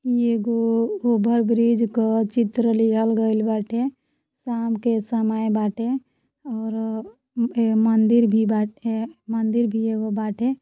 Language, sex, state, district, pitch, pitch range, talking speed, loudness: Bhojpuri, female, Uttar Pradesh, Deoria, 225 Hz, 220-235 Hz, 130 wpm, -22 LUFS